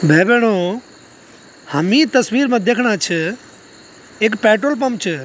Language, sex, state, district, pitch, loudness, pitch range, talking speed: Garhwali, male, Uttarakhand, Tehri Garhwal, 220 Hz, -15 LUFS, 180-250 Hz, 125 wpm